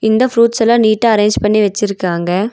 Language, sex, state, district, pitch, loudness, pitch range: Tamil, female, Tamil Nadu, Nilgiris, 215 Hz, -13 LUFS, 205-230 Hz